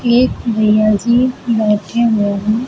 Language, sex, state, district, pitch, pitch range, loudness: Hindi, female, Uttar Pradesh, Lucknow, 225 Hz, 215-240 Hz, -14 LUFS